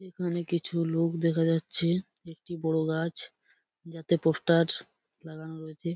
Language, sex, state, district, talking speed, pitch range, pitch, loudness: Bengali, male, West Bengal, Purulia, 120 wpm, 160-170 Hz, 165 Hz, -28 LUFS